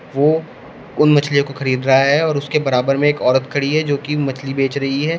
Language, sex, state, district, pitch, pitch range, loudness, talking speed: Hindi, male, Uttar Pradesh, Shamli, 140 Hz, 135-150 Hz, -16 LUFS, 230 wpm